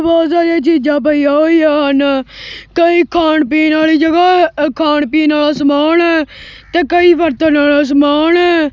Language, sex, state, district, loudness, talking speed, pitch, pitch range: Punjabi, female, Punjab, Kapurthala, -11 LUFS, 165 wpm, 310 Hz, 295-335 Hz